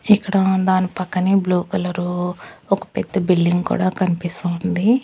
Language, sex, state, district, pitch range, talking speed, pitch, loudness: Telugu, female, Andhra Pradesh, Annamaya, 180-195 Hz, 130 wpm, 185 Hz, -19 LUFS